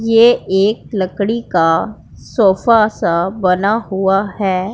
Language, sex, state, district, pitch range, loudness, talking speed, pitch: Hindi, female, Punjab, Pathankot, 190-225 Hz, -14 LUFS, 115 wpm, 200 Hz